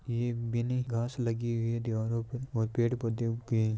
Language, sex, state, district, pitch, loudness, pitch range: Hindi, male, Rajasthan, Churu, 115 Hz, -32 LUFS, 115-120 Hz